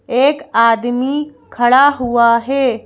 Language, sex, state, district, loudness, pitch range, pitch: Hindi, female, Madhya Pradesh, Bhopal, -14 LUFS, 235-280 Hz, 250 Hz